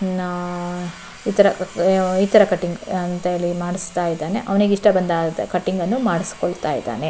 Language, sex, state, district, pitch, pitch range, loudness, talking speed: Kannada, female, Karnataka, Shimoga, 185 Hz, 175-200 Hz, -20 LUFS, 110 wpm